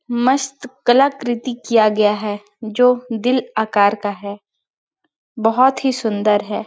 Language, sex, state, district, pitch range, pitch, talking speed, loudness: Hindi, female, Chhattisgarh, Balrampur, 210-255 Hz, 230 Hz, 135 wpm, -17 LUFS